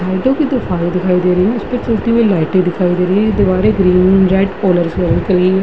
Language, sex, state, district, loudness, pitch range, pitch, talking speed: Hindi, female, Uttar Pradesh, Varanasi, -13 LUFS, 180-210 Hz, 185 Hz, 140 wpm